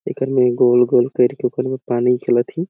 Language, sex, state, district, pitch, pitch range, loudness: Awadhi, male, Chhattisgarh, Balrampur, 125 Hz, 120-130 Hz, -17 LUFS